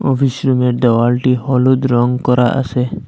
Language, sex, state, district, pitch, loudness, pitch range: Bengali, male, Assam, Hailakandi, 125 Hz, -14 LUFS, 125-130 Hz